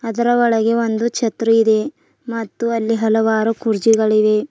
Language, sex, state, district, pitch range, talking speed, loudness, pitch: Kannada, female, Karnataka, Bidar, 220-235 Hz, 120 wpm, -17 LUFS, 225 Hz